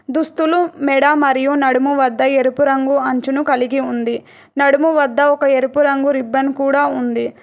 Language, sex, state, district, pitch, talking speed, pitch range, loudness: Telugu, female, Telangana, Hyderabad, 275 Hz, 145 wpm, 265-285 Hz, -15 LUFS